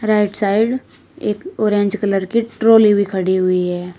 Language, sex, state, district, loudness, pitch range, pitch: Hindi, female, Uttar Pradesh, Shamli, -16 LUFS, 190-215 Hz, 205 Hz